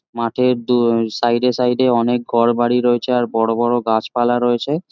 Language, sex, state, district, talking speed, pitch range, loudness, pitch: Bengali, male, West Bengal, Jhargram, 170 wpm, 115-125 Hz, -17 LUFS, 120 Hz